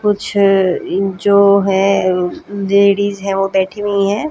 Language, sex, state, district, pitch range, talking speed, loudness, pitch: Hindi, female, Haryana, Jhajjar, 195-200 Hz, 125 wpm, -14 LUFS, 200 Hz